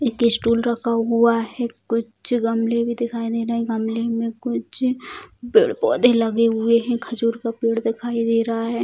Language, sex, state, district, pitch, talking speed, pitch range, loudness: Hindi, female, Bihar, Bhagalpur, 230 Hz, 175 wpm, 230-235 Hz, -21 LUFS